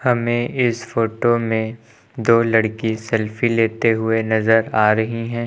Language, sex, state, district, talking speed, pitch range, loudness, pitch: Hindi, male, Uttar Pradesh, Lucknow, 145 wpm, 110-120 Hz, -18 LUFS, 115 Hz